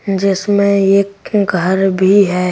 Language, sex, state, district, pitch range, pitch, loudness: Hindi, female, Delhi, New Delhi, 190-200 Hz, 195 Hz, -13 LUFS